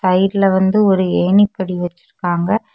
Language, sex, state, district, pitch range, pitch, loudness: Tamil, female, Tamil Nadu, Kanyakumari, 180-200 Hz, 190 Hz, -15 LUFS